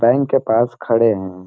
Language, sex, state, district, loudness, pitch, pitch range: Hindi, male, Bihar, Gaya, -16 LUFS, 115 Hz, 110-120 Hz